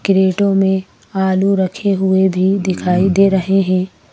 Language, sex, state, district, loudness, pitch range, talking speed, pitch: Hindi, female, Madhya Pradesh, Bhopal, -15 LUFS, 185-195 Hz, 145 wpm, 190 Hz